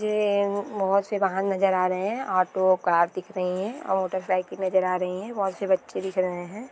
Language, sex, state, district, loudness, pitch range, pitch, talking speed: Hindi, female, Bihar, East Champaran, -25 LUFS, 185-200 Hz, 190 Hz, 225 wpm